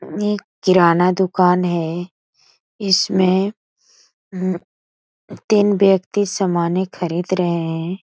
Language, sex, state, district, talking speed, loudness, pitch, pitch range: Hindi, female, Bihar, East Champaran, 90 wpm, -18 LUFS, 185 Hz, 175-195 Hz